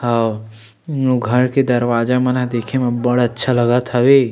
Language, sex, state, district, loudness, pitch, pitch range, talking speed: Chhattisgarhi, male, Chhattisgarh, Sarguja, -16 LUFS, 125 Hz, 120-125 Hz, 165 wpm